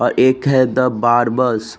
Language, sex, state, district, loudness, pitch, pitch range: Hindi, male, Uttar Pradesh, Jalaun, -15 LUFS, 125 Hz, 120-130 Hz